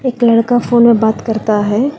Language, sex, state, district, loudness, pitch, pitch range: Hindi, female, Telangana, Hyderabad, -12 LUFS, 235 Hz, 220-245 Hz